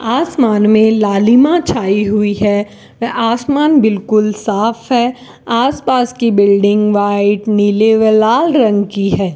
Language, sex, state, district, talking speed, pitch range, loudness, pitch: Hindi, female, Rajasthan, Bikaner, 135 wpm, 205-240 Hz, -12 LUFS, 220 Hz